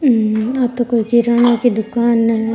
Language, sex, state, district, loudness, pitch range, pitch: Rajasthani, female, Rajasthan, Churu, -15 LUFS, 225-240 Hz, 235 Hz